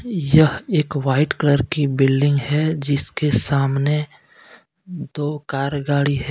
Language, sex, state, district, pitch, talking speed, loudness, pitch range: Hindi, male, Jharkhand, Deoghar, 145 Hz, 125 wpm, -19 LUFS, 140-155 Hz